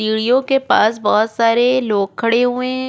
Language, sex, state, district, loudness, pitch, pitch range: Hindi, female, Goa, North and South Goa, -15 LUFS, 235 Hz, 220-255 Hz